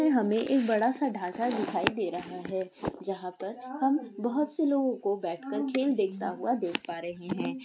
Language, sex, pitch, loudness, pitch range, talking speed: Maithili, female, 230 Hz, -30 LUFS, 190-270 Hz, 195 wpm